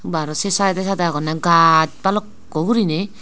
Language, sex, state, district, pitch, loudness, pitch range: Chakma, female, Tripura, Unakoti, 175 Hz, -17 LUFS, 160-200 Hz